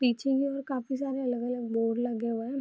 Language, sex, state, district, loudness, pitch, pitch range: Hindi, female, Bihar, Saharsa, -30 LUFS, 250 Hz, 235-270 Hz